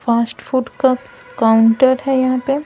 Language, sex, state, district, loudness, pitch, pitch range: Hindi, female, Bihar, Patna, -15 LUFS, 260 Hz, 235-270 Hz